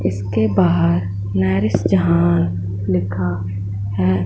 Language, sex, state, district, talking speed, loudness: Hindi, female, Punjab, Fazilka, 55 wpm, -18 LUFS